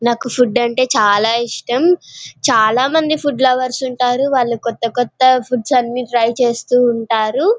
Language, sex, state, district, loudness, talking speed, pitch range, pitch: Telugu, female, Andhra Pradesh, Anantapur, -15 LUFS, 140 wpm, 235-260 Hz, 245 Hz